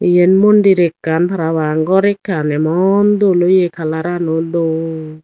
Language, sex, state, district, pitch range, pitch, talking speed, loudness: Chakma, female, Tripura, Dhalai, 160-190 Hz, 175 Hz, 125 wpm, -14 LUFS